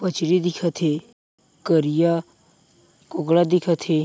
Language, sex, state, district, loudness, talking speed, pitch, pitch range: Chhattisgarhi, male, Chhattisgarh, Bilaspur, -21 LUFS, 105 wpm, 170 Hz, 160-180 Hz